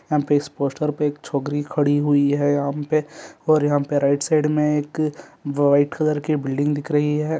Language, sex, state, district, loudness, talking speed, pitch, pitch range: Hindi, male, Chhattisgarh, Rajnandgaon, -21 LUFS, 210 wpm, 145 Hz, 145-150 Hz